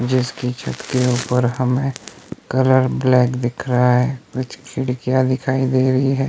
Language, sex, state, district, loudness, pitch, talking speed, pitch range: Hindi, male, Himachal Pradesh, Shimla, -19 LUFS, 130 Hz, 160 wpm, 125-130 Hz